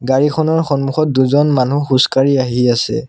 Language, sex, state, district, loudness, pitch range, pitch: Assamese, male, Assam, Sonitpur, -14 LUFS, 130-150 Hz, 135 Hz